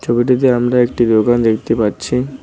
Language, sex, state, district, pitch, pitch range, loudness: Bengali, male, West Bengal, Cooch Behar, 120 Hz, 115-125 Hz, -14 LUFS